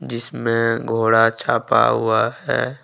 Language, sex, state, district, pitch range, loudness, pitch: Hindi, male, Jharkhand, Ranchi, 115-120 Hz, -18 LUFS, 115 Hz